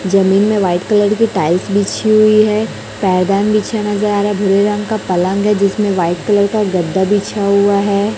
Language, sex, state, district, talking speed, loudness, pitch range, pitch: Hindi, female, Chhattisgarh, Raipur, 205 wpm, -14 LUFS, 195-210 Hz, 205 Hz